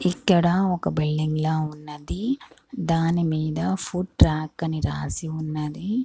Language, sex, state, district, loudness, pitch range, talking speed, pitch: Telugu, female, Andhra Pradesh, Krishna, -24 LUFS, 155-180 Hz, 120 wpm, 160 Hz